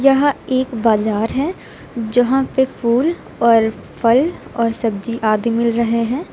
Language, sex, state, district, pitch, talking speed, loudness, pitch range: Hindi, female, Uttar Pradesh, Lucknow, 235 Hz, 140 wpm, -17 LUFS, 230-265 Hz